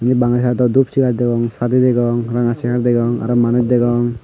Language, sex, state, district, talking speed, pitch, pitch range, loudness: Chakma, male, Tripura, Unakoti, 210 wpm, 120 Hz, 120-125 Hz, -16 LUFS